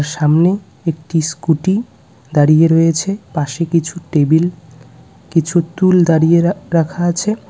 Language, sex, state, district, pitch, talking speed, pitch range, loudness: Bengali, male, West Bengal, Cooch Behar, 165 Hz, 110 wpm, 155-175 Hz, -15 LUFS